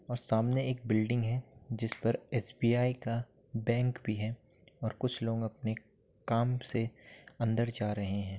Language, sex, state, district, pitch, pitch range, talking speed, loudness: Hindi, male, Uttar Pradesh, Jyotiba Phule Nagar, 115 Hz, 110-125 Hz, 165 wpm, -34 LUFS